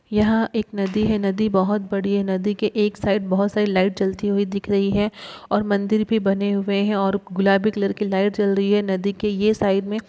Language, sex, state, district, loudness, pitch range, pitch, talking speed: Hindi, female, Uttar Pradesh, Gorakhpur, -21 LUFS, 195-210 Hz, 200 Hz, 230 wpm